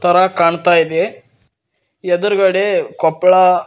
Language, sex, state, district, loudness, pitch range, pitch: Kannada, male, Karnataka, Koppal, -14 LUFS, 170-190 Hz, 180 Hz